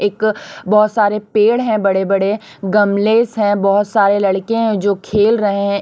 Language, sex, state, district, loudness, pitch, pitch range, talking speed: Hindi, female, Chhattisgarh, Raipur, -15 LUFS, 205 Hz, 200-215 Hz, 165 wpm